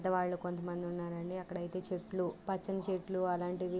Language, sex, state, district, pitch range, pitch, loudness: Telugu, female, Andhra Pradesh, Guntur, 175-185 Hz, 180 Hz, -38 LUFS